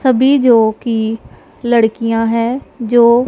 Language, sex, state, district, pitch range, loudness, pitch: Hindi, female, Punjab, Pathankot, 225-245 Hz, -13 LUFS, 235 Hz